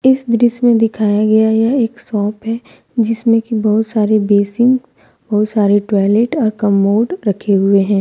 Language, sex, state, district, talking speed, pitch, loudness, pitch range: Hindi, female, Jharkhand, Deoghar, 165 wpm, 220 Hz, -14 LUFS, 205-230 Hz